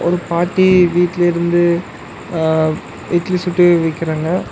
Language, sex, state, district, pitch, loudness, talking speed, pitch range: Tamil, male, Tamil Nadu, Namakkal, 175 Hz, -15 LUFS, 95 wpm, 165-180 Hz